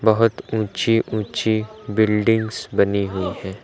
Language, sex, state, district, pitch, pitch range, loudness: Hindi, male, Uttar Pradesh, Lucknow, 110 Hz, 100-110 Hz, -21 LUFS